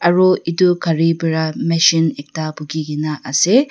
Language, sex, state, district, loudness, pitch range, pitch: Nagamese, female, Nagaland, Dimapur, -16 LUFS, 155-175 Hz, 165 Hz